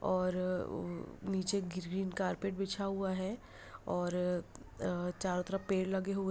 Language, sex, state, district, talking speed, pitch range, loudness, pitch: Hindi, female, Bihar, Begusarai, 160 wpm, 180-195 Hz, -37 LUFS, 190 Hz